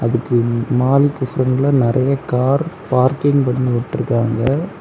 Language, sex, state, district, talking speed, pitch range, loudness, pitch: Tamil, male, Tamil Nadu, Kanyakumari, 100 wpm, 120-140 Hz, -16 LUFS, 130 Hz